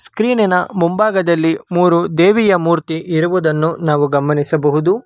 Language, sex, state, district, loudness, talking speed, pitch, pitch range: Kannada, male, Karnataka, Bangalore, -14 LUFS, 95 wpm, 170 Hz, 160-185 Hz